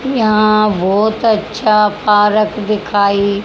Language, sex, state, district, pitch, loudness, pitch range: Hindi, male, Haryana, Rohtak, 215 Hz, -13 LUFS, 205-215 Hz